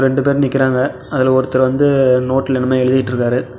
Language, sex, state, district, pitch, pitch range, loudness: Tamil, male, Tamil Nadu, Namakkal, 130 Hz, 130-135 Hz, -15 LUFS